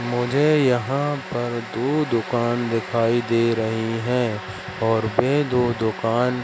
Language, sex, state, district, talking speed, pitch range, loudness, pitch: Hindi, male, Madhya Pradesh, Katni, 120 wpm, 115-125 Hz, -22 LUFS, 120 Hz